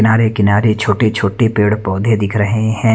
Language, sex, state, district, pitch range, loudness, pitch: Hindi, male, Punjab, Kapurthala, 105-110 Hz, -14 LUFS, 110 Hz